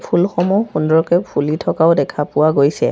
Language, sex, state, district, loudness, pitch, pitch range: Assamese, female, Assam, Sonitpur, -16 LUFS, 160 Hz, 155-175 Hz